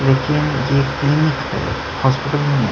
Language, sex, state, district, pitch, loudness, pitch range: Hindi, male, Chhattisgarh, Sukma, 140 Hz, -18 LUFS, 135-145 Hz